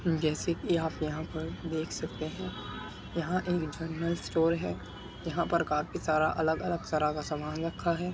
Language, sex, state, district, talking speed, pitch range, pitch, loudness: Hindi, male, Uttar Pradesh, Muzaffarnagar, 170 wpm, 155-170 Hz, 160 Hz, -32 LUFS